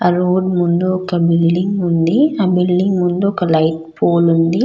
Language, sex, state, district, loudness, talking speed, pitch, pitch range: Telugu, female, Andhra Pradesh, Krishna, -15 LUFS, 130 wpm, 180 Hz, 170-185 Hz